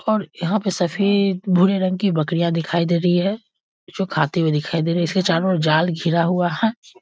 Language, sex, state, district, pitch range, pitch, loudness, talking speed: Hindi, male, Bihar, East Champaran, 170-195 Hz, 180 Hz, -19 LUFS, 220 wpm